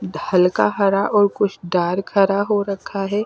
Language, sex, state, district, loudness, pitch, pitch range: Hindi, female, Delhi, New Delhi, -19 LUFS, 200 Hz, 185-205 Hz